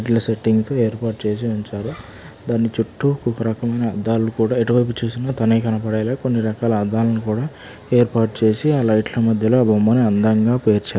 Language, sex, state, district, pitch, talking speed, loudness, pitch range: Telugu, male, Telangana, Karimnagar, 115 Hz, 160 wpm, -19 LUFS, 110-120 Hz